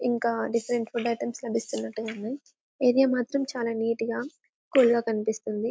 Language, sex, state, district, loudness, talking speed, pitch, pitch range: Telugu, female, Telangana, Karimnagar, -27 LUFS, 145 wpm, 235 Hz, 225-250 Hz